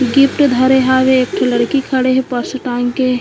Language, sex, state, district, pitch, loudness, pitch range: Chhattisgarhi, female, Chhattisgarh, Korba, 260 Hz, -14 LUFS, 250-265 Hz